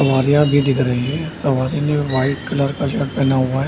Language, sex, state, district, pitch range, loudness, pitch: Hindi, male, Bihar, Samastipur, 130-145 Hz, -18 LUFS, 140 Hz